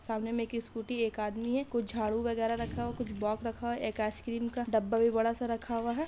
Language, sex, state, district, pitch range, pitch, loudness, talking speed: Hindi, female, Jharkhand, Sahebganj, 225-235 Hz, 230 Hz, -33 LUFS, 275 wpm